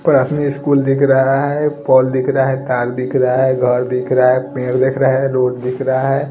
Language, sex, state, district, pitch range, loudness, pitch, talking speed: Hindi, male, Bihar, Patna, 125-135 Hz, -15 LUFS, 130 Hz, 250 wpm